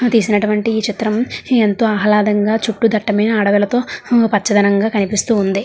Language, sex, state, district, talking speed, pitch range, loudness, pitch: Telugu, female, Andhra Pradesh, Srikakulam, 125 wpm, 205-225 Hz, -15 LUFS, 215 Hz